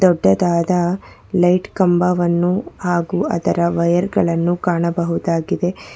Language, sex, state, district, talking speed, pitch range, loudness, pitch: Kannada, female, Karnataka, Bangalore, 80 wpm, 170-180 Hz, -18 LUFS, 175 Hz